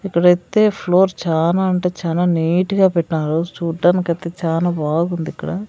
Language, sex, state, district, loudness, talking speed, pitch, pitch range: Telugu, female, Andhra Pradesh, Sri Satya Sai, -17 LUFS, 150 wpm, 175 Hz, 165-180 Hz